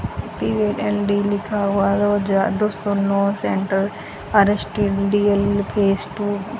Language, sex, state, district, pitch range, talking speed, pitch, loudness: Hindi, female, Haryana, Jhajjar, 200-205 Hz, 80 wpm, 205 Hz, -20 LUFS